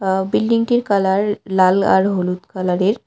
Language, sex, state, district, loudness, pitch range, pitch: Bengali, female, West Bengal, Cooch Behar, -17 LUFS, 185-205 Hz, 190 Hz